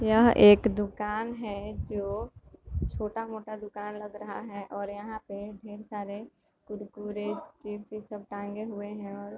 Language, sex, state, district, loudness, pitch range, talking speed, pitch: Hindi, female, Uttar Pradesh, Gorakhpur, -30 LUFS, 205-215 Hz, 155 wpm, 210 Hz